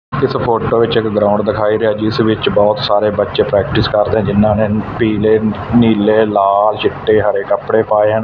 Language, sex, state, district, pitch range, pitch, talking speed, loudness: Punjabi, male, Punjab, Fazilka, 105-110 Hz, 110 Hz, 180 wpm, -13 LUFS